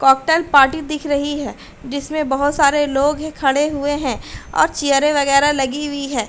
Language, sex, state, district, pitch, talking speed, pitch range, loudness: Hindi, female, Uttar Pradesh, Hamirpur, 285 Hz, 180 wpm, 275-295 Hz, -17 LUFS